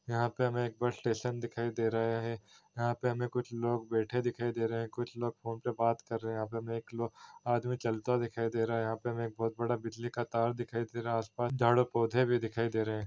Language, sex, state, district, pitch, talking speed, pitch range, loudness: Hindi, male, Chhattisgarh, Raigarh, 115 Hz, 275 wpm, 115-120 Hz, -34 LUFS